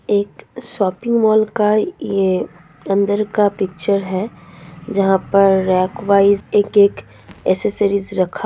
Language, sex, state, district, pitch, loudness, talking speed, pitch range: Hindi, female, Uttar Pradesh, Ghazipur, 195 Hz, -16 LUFS, 120 wpm, 185-205 Hz